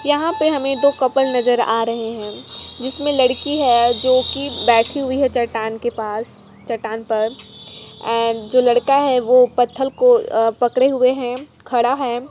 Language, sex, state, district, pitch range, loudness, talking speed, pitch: Hindi, female, Jharkhand, Sahebganj, 230-270 Hz, -17 LUFS, 165 wpm, 250 Hz